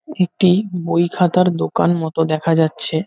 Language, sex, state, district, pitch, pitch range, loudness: Bengali, male, West Bengal, North 24 Parganas, 175 Hz, 160-180 Hz, -17 LUFS